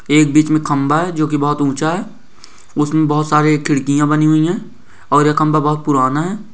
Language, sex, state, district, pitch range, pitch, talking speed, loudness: Hindi, male, Maharashtra, Dhule, 145-155 Hz, 150 Hz, 210 wpm, -15 LUFS